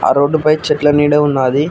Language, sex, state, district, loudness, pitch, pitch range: Telugu, male, Telangana, Mahabubabad, -13 LUFS, 145 Hz, 145-150 Hz